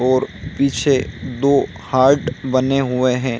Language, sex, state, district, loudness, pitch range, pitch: Hindi, male, Bihar, Samastipur, -17 LUFS, 125-135 Hz, 130 Hz